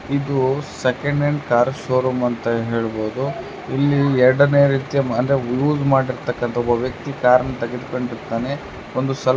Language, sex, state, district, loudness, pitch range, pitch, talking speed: Kannada, male, Karnataka, Chamarajanagar, -19 LUFS, 120-140 Hz, 130 Hz, 120 wpm